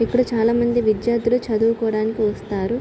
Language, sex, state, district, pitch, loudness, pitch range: Telugu, female, Andhra Pradesh, Srikakulam, 230 Hz, -20 LUFS, 215-235 Hz